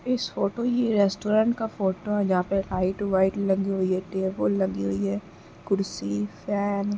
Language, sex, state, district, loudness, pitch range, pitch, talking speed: Hindi, female, Uttar Pradesh, Muzaffarnagar, -26 LUFS, 160-205 Hz, 195 Hz, 180 wpm